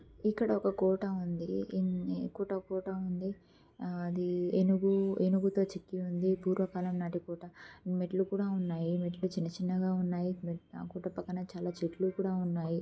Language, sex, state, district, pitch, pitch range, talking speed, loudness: Telugu, female, Andhra Pradesh, Guntur, 185 Hz, 175-190 Hz, 130 wpm, -34 LUFS